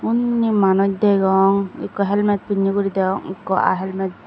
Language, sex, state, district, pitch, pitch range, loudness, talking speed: Chakma, female, Tripura, Dhalai, 195 Hz, 190-205 Hz, -19 LUFS, 155 wpm